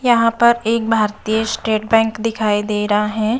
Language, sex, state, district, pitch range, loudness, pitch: Hindi, female, Uttar Pradesh, Budaun, 215-230 Hz, -17 LUFS, 220 Hz